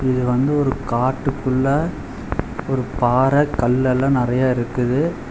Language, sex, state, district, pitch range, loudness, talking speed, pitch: Tamil, male, Tamil Nadu, Chennai, 125-135 Hz, -19 LUFS, 100 wpm, 130 Hz